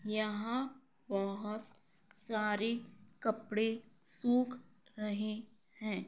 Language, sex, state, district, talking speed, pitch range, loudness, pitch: Hindi, female, Bihar, Kishanganj, 70 wpm, 210-230 Hz, -37 LUFS, 215 Hz